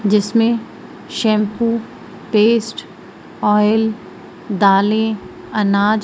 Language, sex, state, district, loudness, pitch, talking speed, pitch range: Hindi, female, Madhya Pradesh, Umaria, -16 LUFS, 215 Hz, 60 wpm, 210-225 Hz